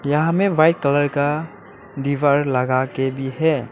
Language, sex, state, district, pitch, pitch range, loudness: Hindi, male, Arunachal Pradesh, Lower Dibang Valley, 145 Hz, 135-155 Hz, -19 LUFS